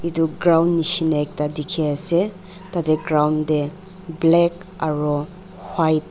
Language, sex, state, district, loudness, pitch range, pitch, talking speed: Nagamese, female, Nagaland, Dimapur, -19 LUFS, 155-180 Hz, 165 Hz, 135 wpm